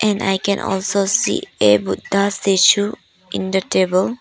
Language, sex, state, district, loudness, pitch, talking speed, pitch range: English, female, Arunachal Pradesh, Papum Pare, -17 LUFS, 195 Hz, 155 wpm, 185-200 Hz